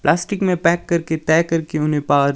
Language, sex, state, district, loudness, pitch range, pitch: Hindi, male, Himachal Pradesh, Shimla, -18 LUFS, 150-170 Hz, 160 Hz